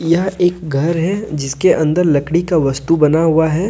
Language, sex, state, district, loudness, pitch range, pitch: Hindi, male, Jharkhand, Deoghar, -15 LUFS, 150-175 Hz, 165 Hz